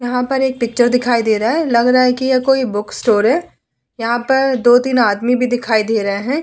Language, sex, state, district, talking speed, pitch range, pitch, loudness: Hindi, female, Bihar, Vaishali, 250 wpm, 230-260 Hz, 245 Hz, -15 LUFS